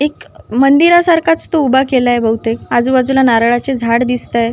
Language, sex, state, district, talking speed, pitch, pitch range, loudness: Marathi, female, Maharashtra, Nagpur, 160 wpm, 255 Hz, 235-275 Hz, -12 LUFS